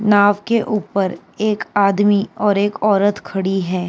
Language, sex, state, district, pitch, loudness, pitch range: Hindi, female, Uttar Pradesh, Jyotiba Phule Nagar, 205 Hz, -17 LUFS, 200-210 Hz